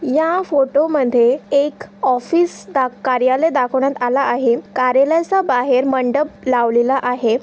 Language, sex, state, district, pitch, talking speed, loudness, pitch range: Marathi, female, Maharashtra, Aurangabad, 260 Hz, 120 wpm, -16 LUFS, 245-290 Hz